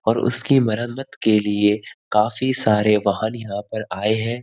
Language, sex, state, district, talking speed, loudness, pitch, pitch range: Hindi, male, Uttarakhand, Uttarkashi, 160 wpm, -20 LUFS, 110 Hz, 105-120 Hz